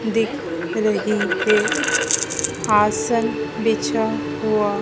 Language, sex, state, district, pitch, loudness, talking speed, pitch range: Hindi, female, Madhya Pradesh, Dhar, 210 Hz, -20 LUFS, 75 wpm, 165-220 Hz